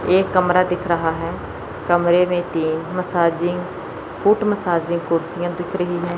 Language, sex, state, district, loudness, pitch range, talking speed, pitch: Hindi, male, Chandigarh, Chandigarh, -20 LUFS, 170-180 Hz, 145 wpm, 175 Hz